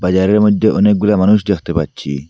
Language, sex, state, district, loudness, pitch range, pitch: Bengali, male, Assam, Hailakandi, -13 LUFS, 85-105 Hz, 100 Hz